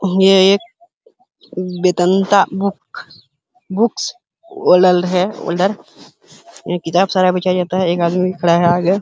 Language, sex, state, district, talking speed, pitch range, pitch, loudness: Hindi, male, Uttar Pradesh, Hamirpur, 140 wpm, 180-205 Hz, 185 Hz, -15 LUFS